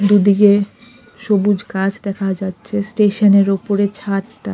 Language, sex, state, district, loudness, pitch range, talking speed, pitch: Bengali, female, Odisha, Khordha, -16 LUFS, 195-205 Hz, 120 wpm, 200 Hz